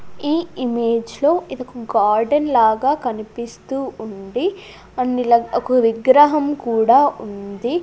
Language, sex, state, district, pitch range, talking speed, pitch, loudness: Telugu, female, Andhra Pradesh, Sri Satya Sai, 225-285 Hz, 105 wpm, 245 Hz, -18 LUFS